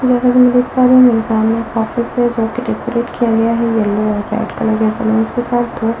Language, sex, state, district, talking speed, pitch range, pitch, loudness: Hindi, female, Delhi, New Delhi, 240 wpm, 220-245 Hz, 230 Hz, -14 LUFS